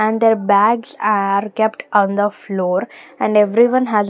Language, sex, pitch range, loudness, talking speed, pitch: English, female, 200-225 Hz, -16 LUFS, 175 wpm, 210 Hz